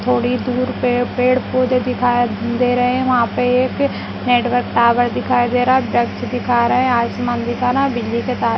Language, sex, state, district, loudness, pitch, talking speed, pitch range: Hindi, female, Bihar, Madhepura, -17 LUFS, 245 Hz, 195 wpm, 240-250 Hz